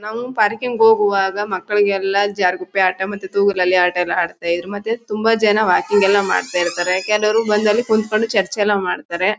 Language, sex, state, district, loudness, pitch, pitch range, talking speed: Kannada, female, Karnataka, Mysore, -17 LUFS, 205 Hz, 190-215 Hz, 170 wpm